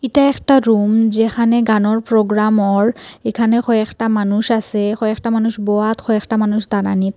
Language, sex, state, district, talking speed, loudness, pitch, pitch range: Bengali, female, Assam, Hailakandi, 150 wpm, -15 LUFS, 220 Hz, 210-230 Hz